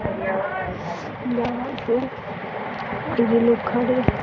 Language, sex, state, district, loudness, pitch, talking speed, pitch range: Hindi, female, Bihar, Sitamarhi, -24 LUFS, 245 Hz, 70 wpm, 235-255 Hz